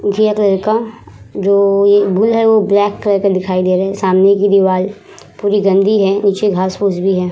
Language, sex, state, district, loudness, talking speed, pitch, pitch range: Hindi, female, Bihar, Vaishali, -13 LUFS, 215 wpm, 200 Hz, 195-205 Hz